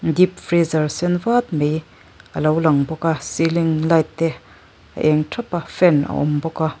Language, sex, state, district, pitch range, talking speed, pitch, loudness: Mizo, female, Mizoram, Aizawl, 150-170 Hz, 185 wpm, 160 Hz, -19 LUFS